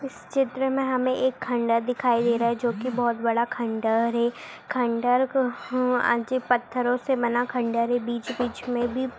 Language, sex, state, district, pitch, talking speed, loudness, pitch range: Hindi, female, Chhattisgarh, Rajnandgaon, 245 Hz, 175 wpm, -25 LUFS, 235-255 Hz